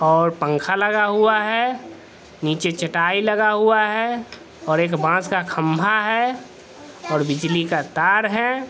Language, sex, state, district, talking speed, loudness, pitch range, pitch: Hindi, male, Bihar, Vaishali, 145 wpm, -19 LUFS, 165-215 Hz, 190 Hz